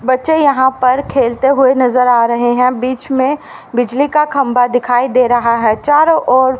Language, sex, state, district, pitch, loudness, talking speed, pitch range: Hindi, female, Haryana, Rohtak, 255 Hz, -12 LUFS, 180 wpm, 245-275 Hz